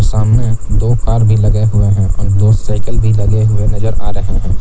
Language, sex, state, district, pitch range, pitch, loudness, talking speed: Hindi, male, Jharkhand, Palamu, 105-110 Hz, 105 Hz, -13 LUFS, 220 wpm